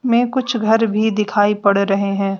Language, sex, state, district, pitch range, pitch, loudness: Hindi, female, Bihar, West Champaran, 200-230 Hz, 210 Hz, -17 LUFS